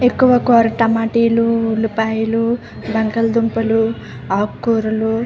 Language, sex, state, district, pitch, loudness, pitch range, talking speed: Telugu, female, Andhra Pradesh, Visakhapatnam, 225 Hz, -16 LUFS, 220-230 Hz, 70 wpm